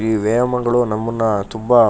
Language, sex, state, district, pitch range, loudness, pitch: Kannada, male, Karnataka, Shimoga, 110-120 Hz, -18 LUFS, 115 Hz